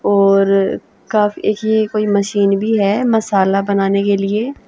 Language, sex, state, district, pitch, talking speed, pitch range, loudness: Hindi, female, Haryana, Jhajjar, 200 Hz, 140 wpm, 195-215 Hz, -15 LUFS